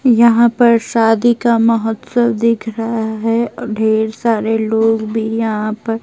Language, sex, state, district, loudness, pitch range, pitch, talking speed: Hindi, female, Bihar, Patna, -15 LUFS, 220-235 Hz, 225 Hz, 150 wpm